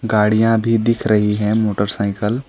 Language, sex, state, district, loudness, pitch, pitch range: Hindi, male, West Bengal, Alipurduar, -16 LUFS, 110 Hz, 105-115 Hz